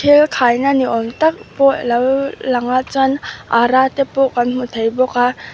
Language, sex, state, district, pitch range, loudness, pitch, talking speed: Mizo, female, Mizoram, Aizawl, 245-275 Hz, -15 LUFS, 255 Hz, 205 wpm